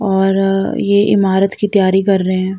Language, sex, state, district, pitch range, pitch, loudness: Hindi, female, Uttar Pradesh, Jalaun, 190-200 Hz, 195 Hz, -14 LUFS